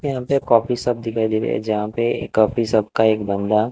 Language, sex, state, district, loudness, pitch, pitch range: Hindi, male, Chhattisgarh, Raipur, -19 LUFS, 110 Hz, 110-120 Hz